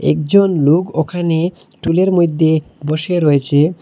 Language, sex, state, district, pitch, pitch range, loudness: Bengali, male, Assam, Hailakandi, 160 Hz, 155-175 Hz, -15 LUFS